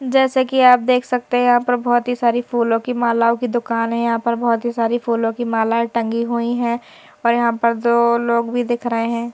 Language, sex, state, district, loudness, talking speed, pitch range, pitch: Hindi, female, Madhya Pradesh, Bhopal, -18 LUFS, 240 wpm, 235-245 Hz, 235 Hz